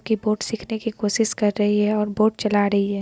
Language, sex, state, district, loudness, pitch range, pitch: Hindi, female, Bihar, Lakhisarai, -21 LUFS, 205-220 Hz, 210 Hz